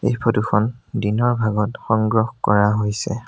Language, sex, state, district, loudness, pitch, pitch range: Assamese, male, Assam, Sonitpur, -20 LUFS, 110 Hz, 105-115 Hz